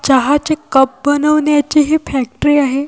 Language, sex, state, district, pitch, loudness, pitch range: Marathi, female, Maharashtra, Washim, 290 Hz, -13 LUFS, 270-300 Hz